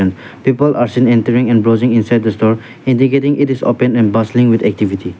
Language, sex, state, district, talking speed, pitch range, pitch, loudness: English, male, Nagaland, Dimapur, 195 wpm, 110-125 Hz, 120 Hz, -13 LUFS